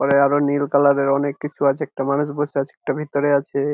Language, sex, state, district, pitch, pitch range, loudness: Bengali, male, West Bengal, Jhargram, 140 Hz, 140-145 Hz, -20 LUFS